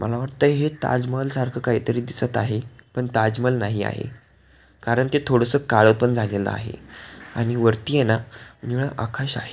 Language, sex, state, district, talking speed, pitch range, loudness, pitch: Marathi, male, Maharashtra, Pune, 170 wpm, 110-130 Hz, -22 LUFS, 120 Hz